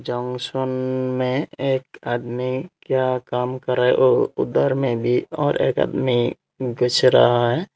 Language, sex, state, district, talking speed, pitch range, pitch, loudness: Hindi, male, Tripura, Unakoti, 140 wpm, 125-130 Hz, 125 Hz, -21 LUFS